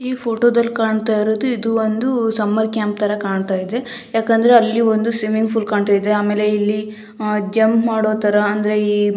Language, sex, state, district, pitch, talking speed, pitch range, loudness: Kannada, female, Karnataka, Gulbarga, 220 Hz, 170 wpm, 210-225 Hz, -17 LUFS